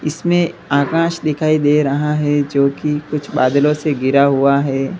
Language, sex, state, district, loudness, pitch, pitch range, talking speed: Hindi, male, Uttar Pradesh, Lalitpur, -16 LUFS, 150 Hz, 140-155 Hz, 170 wpm